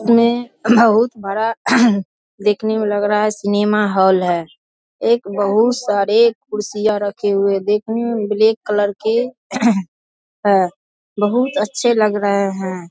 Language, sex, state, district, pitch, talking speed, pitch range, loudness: Hindi, female, Bihar, Darbhanga, 210 Hz, 135 wpm, 200-230 Hz, -17 LUFS